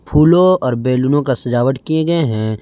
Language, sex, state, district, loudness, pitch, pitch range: Hindi, male, Jharkhand, Garhwa, -14 LUFS, 135 Hz, 125-160 Hz